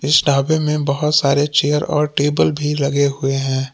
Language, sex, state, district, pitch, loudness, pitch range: Hindi, male, Jharkhand, Palamu, 145 Hz, -17 LUFS, 140-150 Hz